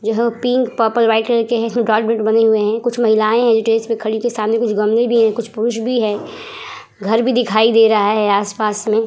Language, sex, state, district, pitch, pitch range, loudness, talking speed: Hindi, female, Uttar Pradesh, Hamirpur, 225 Hz, 215-235 Hz, -15 LUFS, 240 wpm